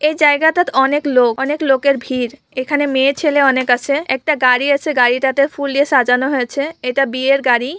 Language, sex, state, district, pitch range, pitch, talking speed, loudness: Bengali, female, West Bengal, Purulia, 255-290 Hz, 275 Hz, 175 wpm, -15 LUFS